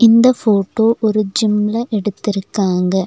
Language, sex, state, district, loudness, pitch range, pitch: Tamil, female, Tamil Nadu, Nilgiris, -15 LUFS, 200-225 Hz, 210 Hz